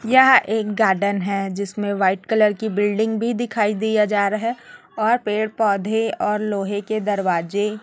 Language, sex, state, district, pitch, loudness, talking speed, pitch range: Hindi, female, Chhattisgarh, Raipur, 210 Hz, -20 LUFS, 170 wpm, 200-220 Hz